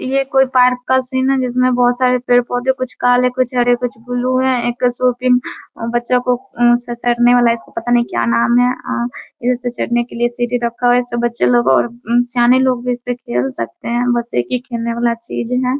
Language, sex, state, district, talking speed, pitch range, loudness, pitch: Hindi, female, Bihar, Muzaffarpur, 215 wpm, 240-250 Hz, -16 LUFS, 245 Hz